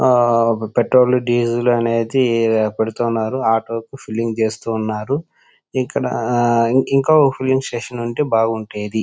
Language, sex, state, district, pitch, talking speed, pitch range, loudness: Telugu, male, Andhra Pradesh, Chittoor, 120 Hz, 85 wpm, 115-130 Hz, -18 LUFS